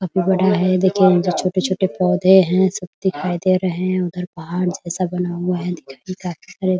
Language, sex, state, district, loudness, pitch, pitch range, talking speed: Hindi, female, Bihar, Muzaffarpur, -18 LUFS, 185 Hz, 180-190 Hz, 210 wpm